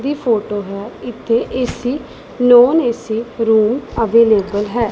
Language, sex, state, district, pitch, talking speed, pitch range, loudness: Punjabi, female, Punjab, Pathankot, 230 Hz, 120 wpm, 215-245 Hz, -15 LUFS